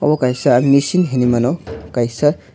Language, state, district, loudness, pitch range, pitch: Kokborok, Tripura, West Tripura, -16 LUFS, 120-145 Hz, 125 Hz